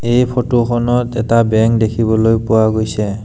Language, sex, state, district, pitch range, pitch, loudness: Assamese, male, Assam, Sonitpur, 110-120 Hz, 115 Hz, -14 LUFS